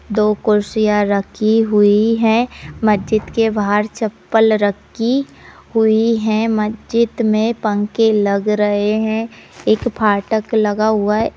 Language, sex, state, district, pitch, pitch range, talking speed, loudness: Hindi, female, Bihar, Purnia, 215 Hz, 210-225 Hz, 120 wpm, -16 LUFS